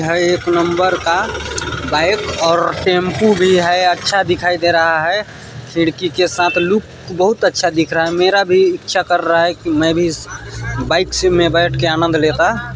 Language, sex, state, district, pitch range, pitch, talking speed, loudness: Hindi, male, Chhattisgarh, Balrampur, 165-180 Hz, 175 Hz, 185 wpm, -14 LUFS